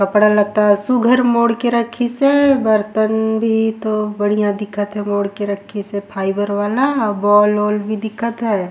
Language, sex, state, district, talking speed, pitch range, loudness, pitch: Surgujia, female, Chhattisgarh, Sarguja, 170 wpm, 205-230 Hz, -16 LUFS, 210 Hz